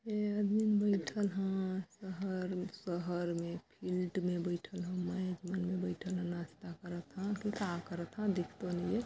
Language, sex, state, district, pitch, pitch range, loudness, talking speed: Chhattisgarhi, female, Chhattisgarh, Balrampur, 185 Hz, 175-200 Hz, -38 LUFS, 185 wpm